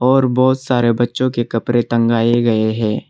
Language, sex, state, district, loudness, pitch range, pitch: Hindi, male, Arunachal Pradesh, Lower Dibang Valley, -16 LUFS, 115-130 Hz, 120 Hz